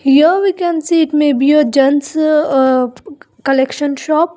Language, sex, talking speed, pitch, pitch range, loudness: English, female, 165 wpm, 295 Hz, 270-315 Hz, -13 LUFS